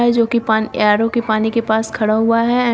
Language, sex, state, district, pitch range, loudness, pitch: Hindi, female, Uttar Pradesh, Shamli, 220-235 Hz, -16 LUFS, 225 Hz